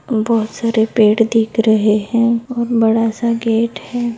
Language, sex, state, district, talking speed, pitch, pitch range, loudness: Hindi, male, Maharashtra, Nagpur, 160 wpm, 225 Hz, 220-235 Hz, -15 LUFS